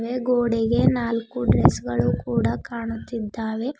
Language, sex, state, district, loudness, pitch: Kannada, female, Karnataka, Bidar, -23 LUFS, 225 Hz